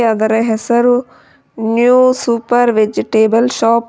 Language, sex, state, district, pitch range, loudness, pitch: Kannada, female, Karnataka, Bidar, 225-245 Hz, -13 LUFS, 235 Hz